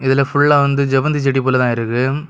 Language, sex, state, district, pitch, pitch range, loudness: Tamil, male, Tamil Nadu, Kanyakumari, 135 Hz, 130-140 Hz, -15 LUFS